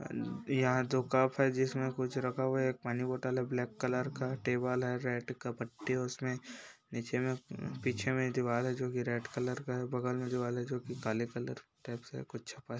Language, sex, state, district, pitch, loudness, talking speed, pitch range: Hindi, male, Chhattisgarh, Bastar, 125 Hz, -36 LUFS, 220 wpm, 125-130 Hz